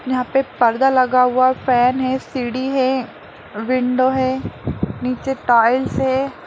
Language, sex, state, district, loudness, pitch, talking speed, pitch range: Hindi, female, Bihar, Lakhisarai, -18 LUFS, 255 Hz, 130 wpm, 250-265 Hz